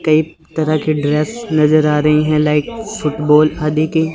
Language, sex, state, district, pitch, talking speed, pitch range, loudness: Hindi, male, Chandigarh, Chandigarh, 155 Hz, 175 wpm, 150-160 Hz, -15 LUFS